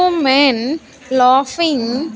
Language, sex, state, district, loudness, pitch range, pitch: English, female, Andhra Pradesh, Sri Satya Sai, -14 LUFS, 255-310 Hz, 275 Hz